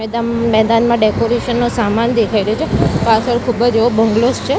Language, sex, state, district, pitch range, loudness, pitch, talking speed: Gujarati, female, Gujarat, Gandhinagar, 220-235 Hz, -14 LUFS, 230 Hz, 170 wpm